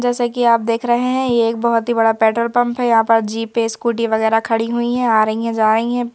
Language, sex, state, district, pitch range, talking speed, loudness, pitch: Hindi, female, Madhya Pradesh, Bhopal, 225-240 Hz, 280 wpm, -16 LUFS, 230 Hz